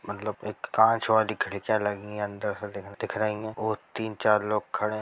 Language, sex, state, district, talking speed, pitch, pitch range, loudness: Hindi, male, Bihar, Jahanabad, 215 wpm, 110 Hz, 105-110 Hz, -28 LUFS